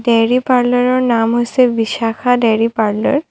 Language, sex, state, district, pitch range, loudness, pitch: Assamese, female, Assam, Kamrup Metropolitan, 225-250 Hz, -14 LUFS, 240 Hz